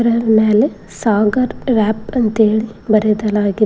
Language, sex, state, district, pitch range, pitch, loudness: Kannada, female, Karnataka, Koppal, 215-230 Hz, 215 Hz, -15 LUFS